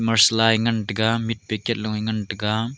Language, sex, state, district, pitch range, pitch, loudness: Wancho, male, Arunachal Pradesh, Longding, 110-115 Hz, 110 Hz, -21 LUFS